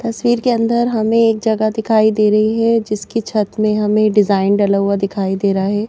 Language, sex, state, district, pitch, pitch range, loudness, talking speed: Hindi, female, Madhya Pradesh, Bhopal, 215 Hz, 205-225 Hz, -15 LUFS, 215 wpm